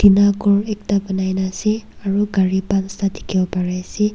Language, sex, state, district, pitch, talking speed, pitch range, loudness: Nagamese, female, Nagaland, Kohima, 195 Hz, 145 wpm, 190-205 Hz, -19 LUFS